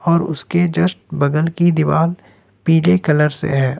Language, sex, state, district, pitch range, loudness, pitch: Hindi, male, Jharkhand, Ranchi, 150-175 Hz, -16 LUFS, 165 Hz